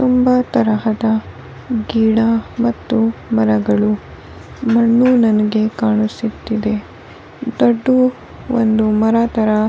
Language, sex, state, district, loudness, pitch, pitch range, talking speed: Kannada, female, Karnataka, Dharwad, -16 LUFS, 225 Hz, 215-235 Hz, 80 wpm